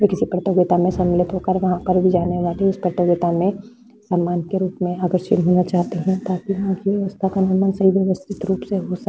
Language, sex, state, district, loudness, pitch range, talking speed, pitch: Hindi, female, Bihar, Vaishali, -19 LUFS, 180-195 Hz, 230 wpm, 185 Hz